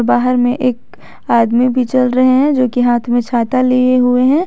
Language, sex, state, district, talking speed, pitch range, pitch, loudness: Hindi, female, Jharkhand, Garhwa, 200 wpm, 245-255 Hz, 250 Hz, -13 LUFS